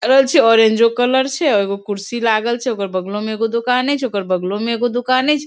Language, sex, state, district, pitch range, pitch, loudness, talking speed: Maithili, female, Bihar, Darbhanga, 210-255 Hz, 235 Hz, -16 LUFS, 230 wpm